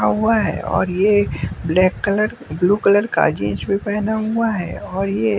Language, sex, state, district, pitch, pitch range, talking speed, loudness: Hindi, male, Bihar, West Champaran, 200 Hz, 185-215 Hz, 180 wpm, -18 LUFS